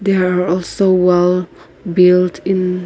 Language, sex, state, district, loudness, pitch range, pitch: English, female, Nagaland, Kohima, -14 LUFS, 180-185 Hz, 180 Hz